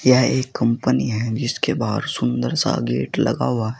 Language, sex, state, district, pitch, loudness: Hindi, male, Uttar Pradesh, Saharanpur, 115 Hz, -20 LUFS